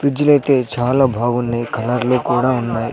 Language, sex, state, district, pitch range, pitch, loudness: Telugu, male, Andhra Pradesh, Sri Satya Sai, 120-135 Hz, 125 Hz, -17 LUFS